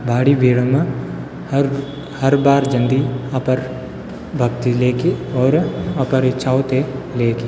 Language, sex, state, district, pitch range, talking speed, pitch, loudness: Garhwali, male, Uttarakhand, Tehri Garhwal, 125-135 Hz, 120 wpm, 130 Hz, -18 LUFS